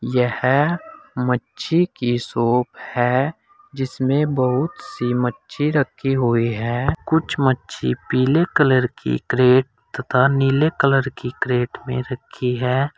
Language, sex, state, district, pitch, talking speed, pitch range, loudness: Hindi, male, Uttar Pradesh, Saharanpur, 130 Hz, 120 wpm, 125-140 Hz, -20 LUFS